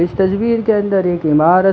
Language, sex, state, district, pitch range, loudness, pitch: Hindi, male, Chhattisgarh, Bilaspur, 175-205 Hz, -14 LUFS, 190 Hz